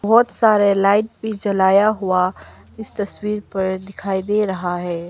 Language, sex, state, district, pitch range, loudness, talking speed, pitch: Hindi, female, Arunachal Pradesh, Papum Pare, 190-210 Hz, -18 LUFS, 155 wpm, 200 Hz